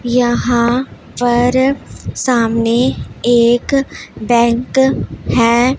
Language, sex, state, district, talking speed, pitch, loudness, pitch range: Hindi, female, Punjab, Pathankot, 60 wpm, 240 Hz, -14 LUFS, 235-255 Hz